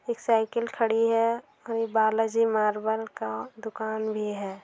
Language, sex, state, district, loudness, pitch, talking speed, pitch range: Hindi, male, Bihar, Sitamarhi, -27 LUFS, 225 Hz, 155 wpm, 215-230 Hz